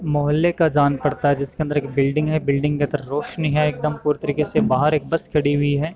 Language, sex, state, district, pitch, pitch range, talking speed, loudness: Hindi, male, Uttar Pradesh, Varanasi, 150 Hz, 145-155 Hz, 240 wpm, -20 LUFS